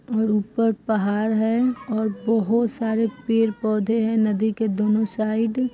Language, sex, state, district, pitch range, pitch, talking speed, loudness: Hindi, female, Bihar, Saran, 215-225 Hz, 220 Hz, 155 wpm, -22 LUFS